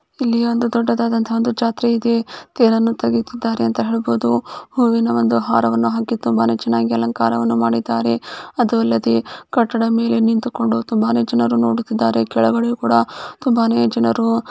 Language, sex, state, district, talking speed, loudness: Kannada, female, Karnataka, Gulbarga, 125 wpm, -17 LUFS